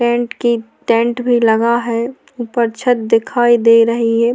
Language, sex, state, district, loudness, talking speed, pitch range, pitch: Hindi, female, Maharashtra, Aurangabad, -14 LUFS, 180 wpm, 230-240 Hz, 235 Hz